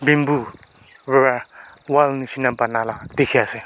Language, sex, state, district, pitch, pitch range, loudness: Nagamese, male, Nagaland, Kohima, 130 Hz, 115-140 Hz, -19 LUFS